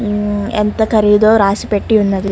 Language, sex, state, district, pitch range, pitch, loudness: Telugu, male, Andhra Pradesh, Guntur, 205-215 Hz, 210 Hz, -13 LUFS